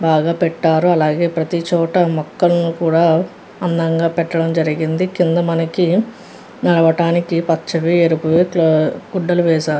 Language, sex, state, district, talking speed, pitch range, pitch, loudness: Telugu, female, Andhra Pradesh, Guntur, 105 wpm, 165-175 Hz, 170 Hz, -16 LUFS